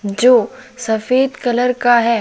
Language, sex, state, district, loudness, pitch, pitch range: Hindi, male, Jharkhand, Deoghar, -15 LUFS, 245 Hz, 230-255 Hz